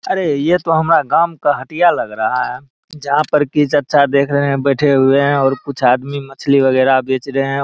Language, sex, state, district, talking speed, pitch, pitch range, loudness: Maithili, male, Bihar, Araria, 210 wpm, 140 Hz, 135-150 Hz, -14 LUFS